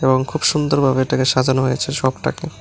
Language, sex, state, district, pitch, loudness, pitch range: Bengali, male, Tripura, West Tripura, 130 Hz, -18 LUFS, 130-140 Hz